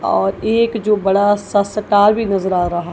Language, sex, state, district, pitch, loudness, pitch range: Hindi, female, Punjab, Kapurthala, 205 Hz, -15 LUFS, 180-210 Hz